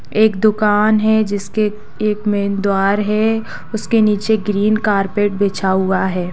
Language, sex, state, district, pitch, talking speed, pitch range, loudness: Hindi, female, Bihar, Sitamarhi, 210 Hz, 140 wpm, 200-215 Hz, -16 LUFS